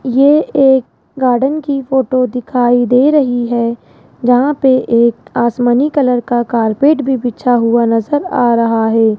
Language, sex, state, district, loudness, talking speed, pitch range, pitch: Hindi, female, Rajasthan, Jaipur, -12 LUFS, 150 wpm, 235-270 Hz, 245 Hz